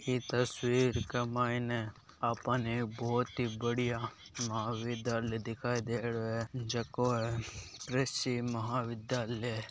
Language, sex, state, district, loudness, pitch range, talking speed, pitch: Marwari, male, Rajasthan, Nagaur, -35 LUFS, 115-125 Hz, 110 wpm, 120 Hz